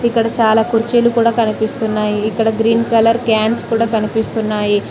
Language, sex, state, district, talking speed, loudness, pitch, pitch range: Telugu, female, Telangana, Mahabubabad, 135 wpm, -15 LUFS, 225 Hz, 220-230 Hz